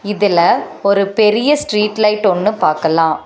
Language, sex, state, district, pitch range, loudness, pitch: Tamil, female, Tamil Nadu, Nilgiris, 175-210 Hz, -14 LUFS, 205 Hz